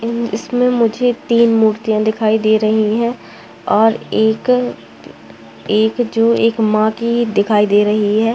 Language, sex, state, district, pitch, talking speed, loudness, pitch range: Hindi, female, Bihar, Purnia, 220 Hz, 135 wpm, -15 LUFS, 215-235 Hz